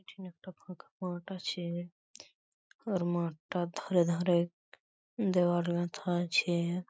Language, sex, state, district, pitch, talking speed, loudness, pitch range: Bengali, male, West Bengal, Paschim Medinipur, 175 Hz, 105 wpm, -33 LUFS, 175-185 Hz